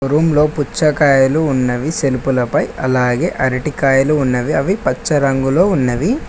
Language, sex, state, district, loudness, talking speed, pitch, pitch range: Telugu, male, Telangana, Mahabubabad, -15 LUFS, 125 wpm, 135 Hz, 130-150 Hz